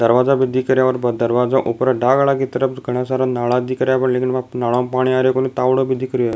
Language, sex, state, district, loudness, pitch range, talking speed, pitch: Rajasthani, male, Rajasthan, Nagaur, -17 LUFS, 125-130 Hz, 285 wpm, 130 Hz